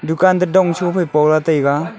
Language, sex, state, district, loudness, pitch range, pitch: Wancho, male, Arunachal Pradesh, Longding, -15 LUFS, 155-180 Hz, 165 Hz